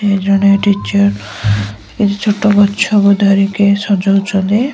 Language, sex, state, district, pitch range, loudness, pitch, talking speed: Odia, male, Odisha, Nuapada, 190-205 Hz, -12 LUFS, 200 Hz, 75 wpm